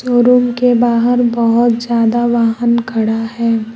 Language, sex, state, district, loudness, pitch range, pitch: Hindi, female, Uttar Pradesh, Lucknow, -13 LUFS, 230-240 Hz, 235 Hz